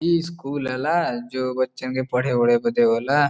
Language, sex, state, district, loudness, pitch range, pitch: Bhojpuri, male, Uttar Pradesh, Varanasi, -22 LUFS, 120-145 Hz, 130 Hz